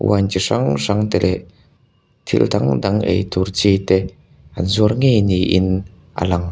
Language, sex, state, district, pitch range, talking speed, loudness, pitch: Mizo, male, Mizoram, Aizawl, 95-100 Hz, 185 wpm, -17 LUFS, 95 Hz